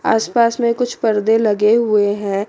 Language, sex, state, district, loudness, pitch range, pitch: Hindi, female, Chandigarh, Chandigarh, -16 LUFS, 210-235 Hz, 220 Hz